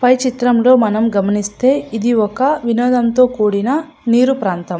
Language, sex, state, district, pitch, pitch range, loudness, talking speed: Telugu, female, Andhra Pradesh, Anantapur, 240 Hz, 215-255 Hz, -14 LUFS, 150 wpm